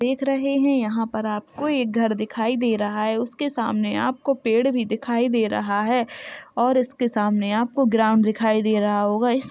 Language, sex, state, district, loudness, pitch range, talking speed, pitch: Hindi, male, Uttar Pradesh, Jalaun, -22 LUFS, 220-255 Hz, 200 wpm, 230 Hz